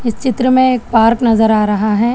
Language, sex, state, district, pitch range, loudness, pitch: Hindi, female, Telangana, Hyderabad, 220-255 Hz, -12 LUFS, 230 Hz